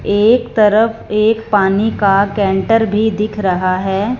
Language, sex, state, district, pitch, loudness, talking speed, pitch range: Hindi, female, Punjab, Fazilka, 210 Hz, -14 LUFS, 145 wpm, 195-220 Hz